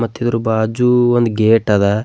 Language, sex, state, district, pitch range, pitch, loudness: Kannada, male, Karnataka, Bidar, 110-120 Hz, 115 Hz, -14 LUFS